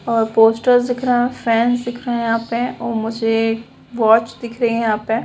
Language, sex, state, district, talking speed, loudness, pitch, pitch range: Hindi, female, Bihar, Purnia, 215 wpm, -17 LUFS, 230 Hz, 225-240 Hz